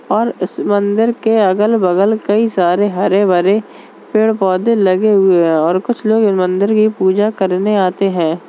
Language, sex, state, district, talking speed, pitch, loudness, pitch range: Hindi, male, Uttar Pradesh, Jalaun, 175 wpm, 200 Hz, -13 LUFS, 185-215 Hz